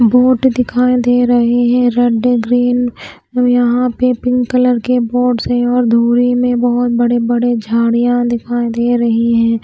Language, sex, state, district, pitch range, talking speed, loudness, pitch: Hindi, female, Haryana, Rohtak, 240-245 Hz, 160 wpm, -13 LUFS, 245 Hz